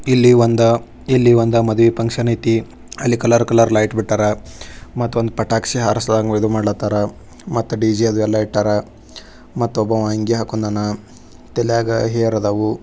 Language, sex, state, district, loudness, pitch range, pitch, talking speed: Kannada, male, Karnataka, Bijapur, -17 LUFS, 105-115 Hz, 110 Hz, 125 wpm